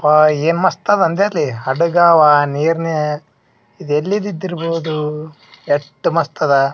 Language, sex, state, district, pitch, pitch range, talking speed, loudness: Kannada, male, Karnataka, Bijapur, 155 Hz, 150-170 Hz, 115 wpm, -15 LUFS